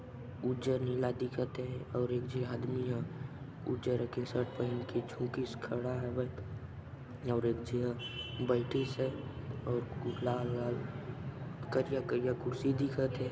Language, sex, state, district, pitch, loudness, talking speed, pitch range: Chhattisgarhi, male, Chhattisgarh, Sarguja, 125 Hz, -37 LUFS, 140 wpm, 120-130 Hz